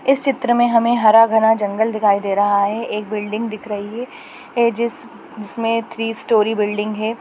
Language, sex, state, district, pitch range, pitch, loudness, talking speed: Hindi, female, Chhattisgarh, Raigarh, 210-235 Hz, 220 Hz, -17 LUFS, 185 wpm